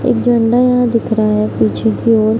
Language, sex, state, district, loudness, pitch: Hindi, female, Bihar, Araria, -13 LUFS, 225 Hz